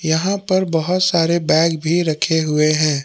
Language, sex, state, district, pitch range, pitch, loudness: Hindi, male, Jharkhand, Palamu, 155-180 Hz, 165 Hz, -17 LUFS